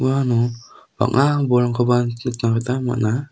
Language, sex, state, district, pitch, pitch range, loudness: Garo, male, Meghalaya, South Garo Hills, 125 Hz, 120-130 Hz, -19 LUFS